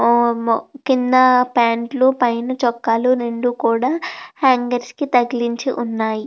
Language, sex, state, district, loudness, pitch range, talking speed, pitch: Telugu, female, Andhra Pradesh, Krishna, -17 LUFS, 235-260 Hz, 115 wpm, 245 Hz